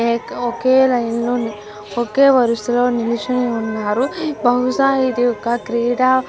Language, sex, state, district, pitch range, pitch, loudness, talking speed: Telugu, female, Andhra Pradesh, Guntur, 235-255 Hz, 245 Hz, -17 LUFS, 105 wpm